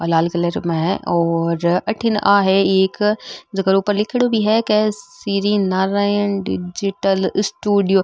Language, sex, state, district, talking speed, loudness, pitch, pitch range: Marwari, female, Rajasthan, Nagaur, 155 wpm, -18 LUFS, 195 Hz, 190-210 Hz